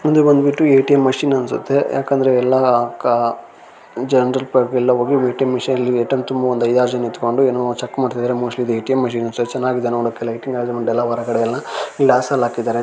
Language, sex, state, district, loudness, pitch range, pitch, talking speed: Kannada, male, Karnataka, Shimoga, -17 LUFS, 120-130 Hz, 125 Hz, 175 wpm